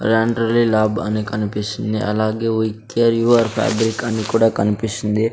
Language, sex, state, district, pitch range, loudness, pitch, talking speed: Telugu, male, Andhra Pradesh, Sri Satya Sai, 105-115 Hz, -18 LUFS, 110 Hz, 145 wpm